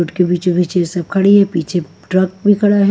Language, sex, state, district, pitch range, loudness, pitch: Hindi, female, Haryana, Charkhi Dadri, 175-200 Hz, -14 LUFS, 180 Hz